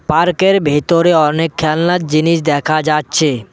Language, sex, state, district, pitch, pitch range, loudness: Bengali, male, West Bengal, Cooch Behar, 155 Hz, 150-170 Hz, -13 LUFS